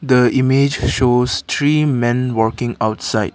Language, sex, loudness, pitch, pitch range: English, male, -16 LUFS, 125 Hz, 115-130 Hz